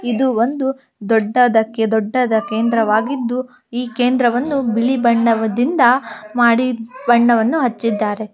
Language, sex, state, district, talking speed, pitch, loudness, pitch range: Kannada, female, Karnataka, Bellary, 100 wpm, 240 Hz, -16 LUFS, 225-250 Hz